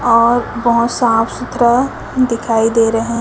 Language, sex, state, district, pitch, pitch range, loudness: Hindi, female, Chhattisgarh, Raipur, 235 Hz, 230-240 Hz, -14 LUFS